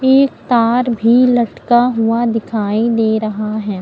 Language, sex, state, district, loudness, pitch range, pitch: Hindi, female, Uttar Pradesh, Lucknow, -14 LUFS, 220-245 Hz, 230 Hz